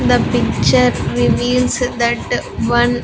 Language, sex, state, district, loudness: English, female, Andhra Pradesh, Sri Satya Sai, -15 LUFS